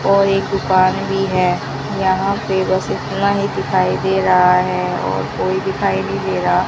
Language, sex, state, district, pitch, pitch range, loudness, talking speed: Hindi, female, Rajasthan, Bikaner, 190 Hz, 180-195 Hz, -17 LUFS, 190 wpm